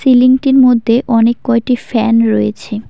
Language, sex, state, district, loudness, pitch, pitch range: Bengali, female, West Bengal, Cooch Behar, -11 LUFS, 235 Hz, 225-255 Hz